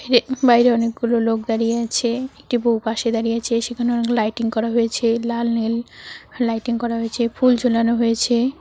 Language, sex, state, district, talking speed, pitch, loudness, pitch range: Bengali, female, West Bengal, Cooch Behar, 165 wpm, 235 Hz, -19 LUFS, 230-240 Hz